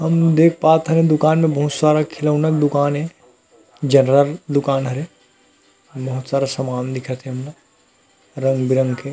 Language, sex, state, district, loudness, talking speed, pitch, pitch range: Chhattisgarhi, male, Chhattisgarh, Rajnandgaon, -17 LUFS, 150 wpm, 145 Hz, 130-155 Hz